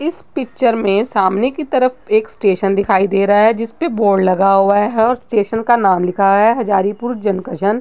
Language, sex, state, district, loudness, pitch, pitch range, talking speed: Hindi, female, Uttar Pradesh, Gorakhpur, -15 LUFS, 215 Hz, 195-245 Hz, 205 wpm